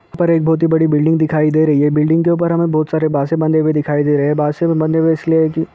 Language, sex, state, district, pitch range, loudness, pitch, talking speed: Hindi, male, Chhattisgarh, Kabirdham, 150-160 Hz, -14 LUFS, 155 Hz, 305 wpm